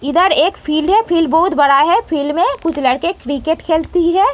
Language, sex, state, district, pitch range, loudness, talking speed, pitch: Hindi, female, Uttar Pradesh, Muzaffarnagar, 290-350 Hz, -14 LUFS, 205 wpm, 320 Hz